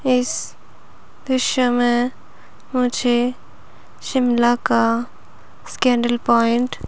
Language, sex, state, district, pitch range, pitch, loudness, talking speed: Hindi, female, Himachal Pradesh, Shimla, 230-250 Hz, 240 Hz, -19 LUFS, 80 wpm